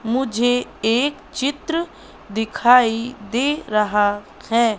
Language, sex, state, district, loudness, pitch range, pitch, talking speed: Hindi, female, Madhya Pradesh, Katni, -20 LUFS, 220-265 Hz, 240 Hz, 90 wpm